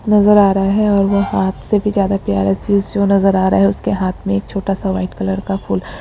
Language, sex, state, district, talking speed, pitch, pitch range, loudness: Hindi, female, Bihar, Lakhisarai, 250 wpm, 195 Hz, 185-200 Hz, -15 LUFS